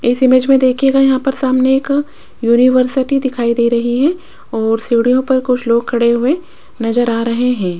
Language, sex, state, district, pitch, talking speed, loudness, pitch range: Hindi, female, Rajasthan, Jaipur, 250 Hz, 185 wpm, -14 LUFS, 235-270 Hz